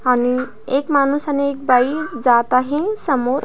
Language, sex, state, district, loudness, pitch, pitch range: Marathi, female, Maharashtra, Pune, -17 LUFS, 275 Hz, 250-290 Hz